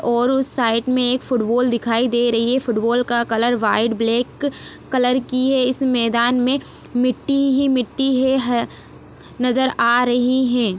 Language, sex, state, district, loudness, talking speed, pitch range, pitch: Hindi, female, Chhattisgarh, Jashpur, -18 LUFS, 160 wpm, 235-260 Hz, 250 Hz